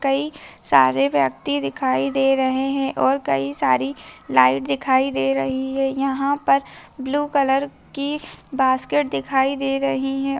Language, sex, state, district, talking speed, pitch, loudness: Hindi, female, Bihar, Begusarai, 145 wpm, 265 Hz, -20 LUFS